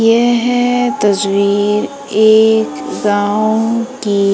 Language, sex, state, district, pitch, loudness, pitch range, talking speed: Hindi, female, Madhya Pradesh, Umaria, 215 Hz, -13 LUFS, 205-230 Hz, 70 wpm